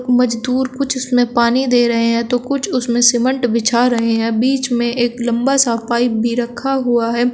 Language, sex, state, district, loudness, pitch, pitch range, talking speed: Hindi, female, Uttar Pradesh, Shamli, -16 LUFS, 240 Hz, 235-255 Hz, 190 wpm